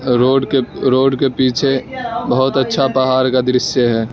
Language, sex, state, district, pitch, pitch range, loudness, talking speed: Hindi, male, Arunachal Pradesh, Lower Dibang Valley, 130 Hz, 125-135 Hz, -15 LUFS, 130 wpm